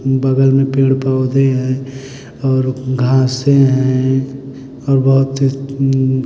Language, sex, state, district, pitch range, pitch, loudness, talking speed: Hindi, male, Bihar, Kaimur, 130-135 Hz, 135 Hz, -14 LUFS, 105 wpm